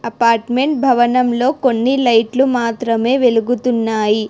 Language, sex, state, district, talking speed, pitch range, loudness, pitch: Telugu, female, Telangana, Hyderabad, 85 wpm, 230-255 Hz, -15 LUFS, 240 Hz